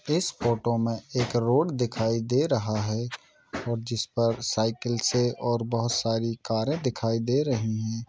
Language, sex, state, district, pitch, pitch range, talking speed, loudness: Hindi, male, Bihar, Gopalganj, 115 Hz, 115-120 Hz, 165 wpm, -27 LUFS